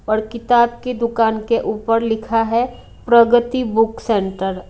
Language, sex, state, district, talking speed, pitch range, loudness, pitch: Hindi, female, Haryana, Rohtak, 140 wpm, 220-235 Hz, -17 LUFS, 230 Hz